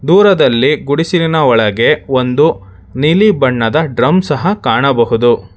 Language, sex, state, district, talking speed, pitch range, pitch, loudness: Kannada, male, Karnataka, Bangalore, 95 wpm, 120-165 Hz, 140 Hz, -11 LUFS